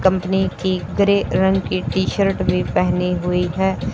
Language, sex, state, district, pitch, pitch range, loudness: Hindi, female, Haryana, Charkhi Dadri, 190 Hz, 180-190 Hz, -19 LUFS